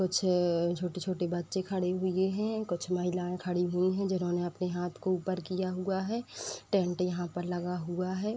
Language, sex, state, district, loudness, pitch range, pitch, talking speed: Hindi, female, Uttar Pradesh, Etah, -32 LUFS, 175-185 Hz, 180 Hz, 195 wpm